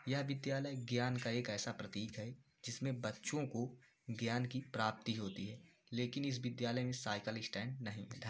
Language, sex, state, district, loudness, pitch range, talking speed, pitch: Hindi, male, Uttar Pradesh, Varanasi, -42 LUFS, 110-130 Hz, 175 wpm, 120 Hz